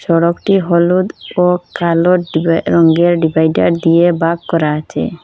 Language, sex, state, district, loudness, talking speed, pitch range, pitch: Bengali, female, Assam, Hailakandi, -13 LUFS, 140 wpm, 165-175 Hz, 170 Hz